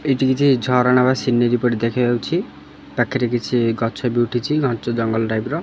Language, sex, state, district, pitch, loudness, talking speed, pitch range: Odia, male, Odisha, Khordha, 120 Hz, -19 LUFS, 170 wpm, 120-130 Hz